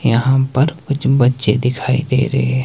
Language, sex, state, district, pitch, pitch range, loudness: Hindi, male, Himachal Pradesh, Shimla, 130 Hz, 125-135 Hz, -15 LUFS